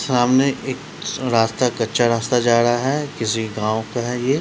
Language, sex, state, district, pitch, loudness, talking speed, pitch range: Hindi, male, Bihar, Patna, 120 Hz, -19 LUFS, 205 wpm, 115-130 Hz